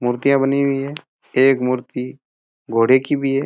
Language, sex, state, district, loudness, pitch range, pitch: Rajasthani, male, Rajasthan, Churu, -18 LUFS, 125-140 Hz, 135 Hz